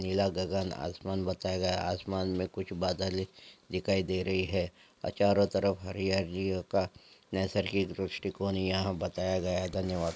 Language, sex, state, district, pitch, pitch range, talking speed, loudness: Angika, male, Bihar, Samastipur, 95 Hz, 90-95 Hz, 155 wpm, -32 LUFS